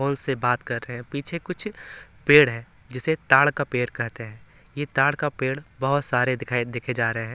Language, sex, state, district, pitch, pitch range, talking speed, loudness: Hindi, male, Bihar, Patna, 130 Hz, 120-145 Hz, 220 wpm, -23 LUFS